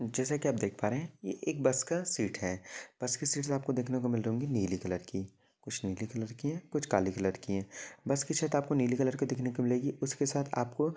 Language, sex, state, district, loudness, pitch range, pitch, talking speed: Hindi, male, Maharashtra, Solapur, -33 LUFS, 105-140 Hz, 125 Hz, 255 wpm